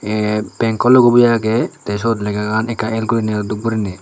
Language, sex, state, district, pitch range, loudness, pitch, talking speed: Chakma, male, Tripura, Unakoti, 105-115 Hz, -16 LUFS, 110 Hz, 180 wpm